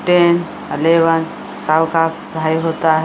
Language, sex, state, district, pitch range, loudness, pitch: Maithili, female, Bihar, Samastipur, 160-165 Hz, -16 LUFS, 165 Hz